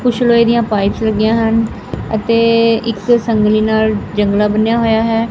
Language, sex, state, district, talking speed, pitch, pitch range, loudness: Punjabi, female, Punjab, Fazilka, 160 wpm, 225 Hz, 215-230 Hz, -13 LUFS